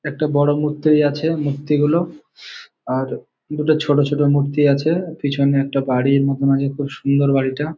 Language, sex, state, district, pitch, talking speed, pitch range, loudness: Bengali, male, West Bengal, Malda, 145 Hz, 175 wpm, 140-150 Hz, -18 LUFS